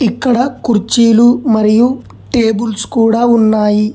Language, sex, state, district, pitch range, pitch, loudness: Telugu, male, Telangana, Hyderabad, 220-240 Hz, 230 Hz, -11 LUFS